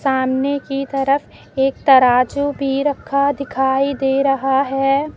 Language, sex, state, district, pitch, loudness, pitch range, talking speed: Hindi, female, Uttar Pradesh, Lucknow, 275 Hz, -17 LUFS, 270-280 Hz, 130 wpm